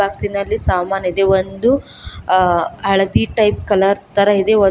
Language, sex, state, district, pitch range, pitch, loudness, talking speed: Kannada, female, Karnataka, Koppal, 195-205 Hz, 195 Hz, -16 LUFS, 100 wpm